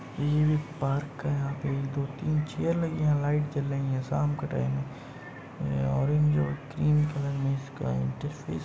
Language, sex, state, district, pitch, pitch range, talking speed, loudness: Hindi, male, Uttar Pradesh, Muzaffarnagar, 140 Hz, 115-150 Hz, 200 wpm, -29 LUFS